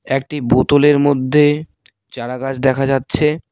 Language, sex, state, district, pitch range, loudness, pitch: Bengali, male, West Bengal, Cooch Behar, 130-145 Hz, -15 LUFS, 140 Hz